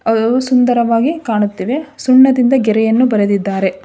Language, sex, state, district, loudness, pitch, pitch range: Kannada, female, Karnataka, Dharwad, -13 LUFS, 235 Hz, 210-255 Hz